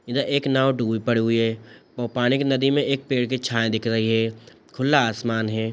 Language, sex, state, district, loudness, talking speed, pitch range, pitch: Hindi, male, Bihar, Sitamarhi, -22 LUFS, 240 wpm, 115-135 Hz, 120 Hz